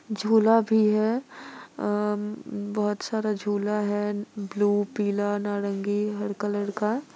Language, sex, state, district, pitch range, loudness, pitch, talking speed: Hindi, female, Bihar, Muzaffarpur, 205-215 Hz, -26 LUFS, 210 Hz, 110 wpm